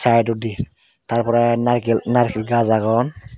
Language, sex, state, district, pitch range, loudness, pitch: Chakma, male, Tripura, Dhalai, 115-120 Hz, -19 LUFS, 115 Hz